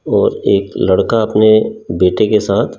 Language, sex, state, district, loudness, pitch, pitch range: Hindi, male, Delhi, New Delhi, -13 LUFS, 105 Hz, 100-110 Hz